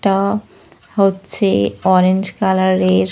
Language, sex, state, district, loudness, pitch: Bengali, female, Jharkhand, Jamtara, -16 LUFS, 190 Hz